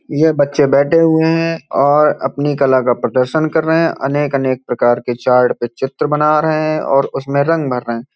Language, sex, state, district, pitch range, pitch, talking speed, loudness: Hindi, male, Uttar Pradesh, Hamirpur, 130-155 Hz, 140 Hz, 205 wpm, -14 LUFS